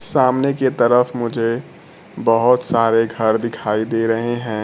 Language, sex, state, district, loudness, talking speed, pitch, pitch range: Hindi, male, Bihar, Kaimur, -17 LUFS, 140 wpm, 115 Hz, 115-125 Hz